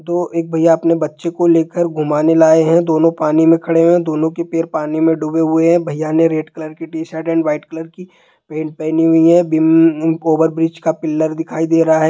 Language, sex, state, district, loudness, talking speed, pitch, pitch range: Hindi, male, Bihar, Jahanabad, -14 LUFS, 230 wpm, 160 Hz, 160-165 Hz